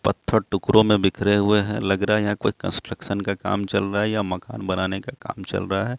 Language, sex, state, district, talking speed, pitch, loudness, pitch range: Hindi, male, Bihar, Katihar, 250 wpm, 100 Hz, -22 LUFS, 95-105 Hz